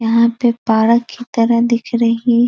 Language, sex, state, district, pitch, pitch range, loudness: Hindi, female, Bihar, East Champaran, 235 Hz, 230-240 Hz, -15 LUFS